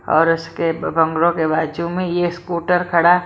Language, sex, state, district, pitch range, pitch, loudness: Hindi, female, Maharashtra, Mumbai Suburban, 165-175 Hz, 170 Hz, -18 LUFS